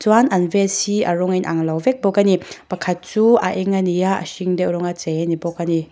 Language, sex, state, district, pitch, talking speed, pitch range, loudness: Mizo, female, Mizoram, Aizawl, 185 Hz, 305 wpm, 170-195 Hz, -18 LUFS